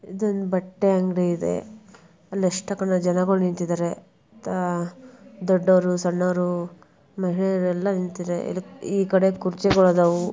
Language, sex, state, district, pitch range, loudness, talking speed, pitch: Kannada, female, Karnataka, Bijapur, 180-195 Hz, -23 LUFS, 135 wpm, 185 Hz